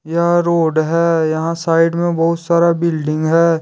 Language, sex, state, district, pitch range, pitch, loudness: Hindi, male, Jharkhand, Deoghar, 160-170 Hz, 165 Hz, -15 LUFS